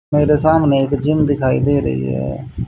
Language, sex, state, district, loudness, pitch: Hindi, male, Haryana, Jhajjar, -16 LUFS, 140 Hz